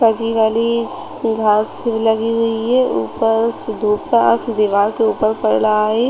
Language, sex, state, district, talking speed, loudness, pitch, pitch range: Hindi, female, Chhattisgarh, Rajnandgaon, 155 wpm, -16 LUFS, 225 Hz, 215-230 Hz